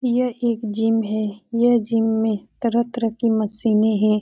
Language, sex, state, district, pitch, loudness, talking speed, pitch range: Hindi, female, Uttar Pradesh, Etah, 225 Hz, -21 LUFS, 185 wpm, 215-235 Hz